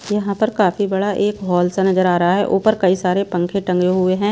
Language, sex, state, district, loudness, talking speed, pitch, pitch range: Hindi, female, Himachal Pradesh, Shimla, -17 LUFS, 250 wpm, 190 Hz, 180-205 Hz